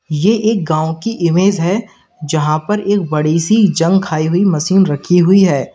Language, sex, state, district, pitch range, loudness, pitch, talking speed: Hindi, male, Uttar Pradesh, Lalitpur, 155-200 Hz, -14 LUFS, 180 Hz, 190 wpm